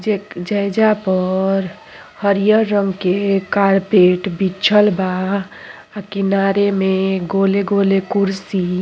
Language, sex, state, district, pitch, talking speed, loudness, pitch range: Bhojpuri, female, Uttar Pradesh, Ghazipur, 195 Hz, 110 wpm, -16 LUFS, 190-200 Hz